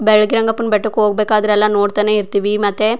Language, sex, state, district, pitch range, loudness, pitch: Kannada, female, Karnataka, Chamarajanagar, 210-215 Hz, -15 LUFS, 210 Hz